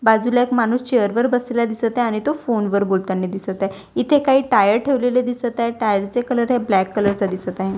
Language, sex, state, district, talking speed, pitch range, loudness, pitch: Marathi, female, Maharashtra, Washim, 230 wpm, 200-245 Hz, -19 LUFS, 230 Hz